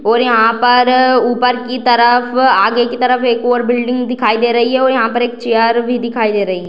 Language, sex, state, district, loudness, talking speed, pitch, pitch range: Hindi, female, Bihar, Sitamarhi, -12 LUFS, 250 wpm, 240 Hz, 235-250 Hz